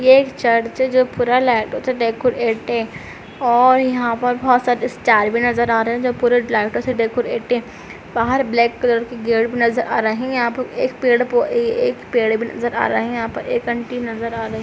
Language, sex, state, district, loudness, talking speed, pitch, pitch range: Hindi, female, Uttar Pradesh, Budaun, -18 LUFS, 225 wpm, 240 Hz, 230-250 Hz